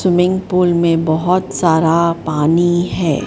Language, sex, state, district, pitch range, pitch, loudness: Hindi, female, Maharashtra, Mumbai Suburban, 160-180 Hz, 170 Hz, -14 LUFS